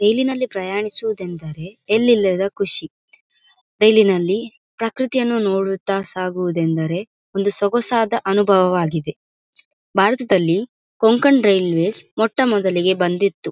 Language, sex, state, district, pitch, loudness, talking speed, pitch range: Kannada, female, Karnataka, Dakshina Kannada, 200 Hz, -18 LUFS, 95 wpm, 185-225 Hz